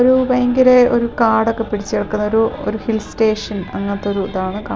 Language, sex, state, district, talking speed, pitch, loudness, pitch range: Malayalam, female, Kerala, Wayanad, 175 wpm, 220 Hz, -16 LUFS, 205-235 Hz